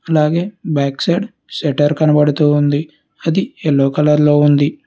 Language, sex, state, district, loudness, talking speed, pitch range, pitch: Telugu, male, Telangana, Hyderabad, -15 LUFS, 125 wpm, 145-170 Hz, 150 Hz